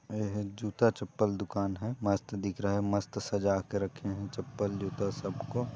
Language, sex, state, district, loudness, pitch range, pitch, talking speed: Hindi, male, Chhattisgarh, Balrampur, -33 LUFS, 100-110 Hz, 100 Hz, 175 wpm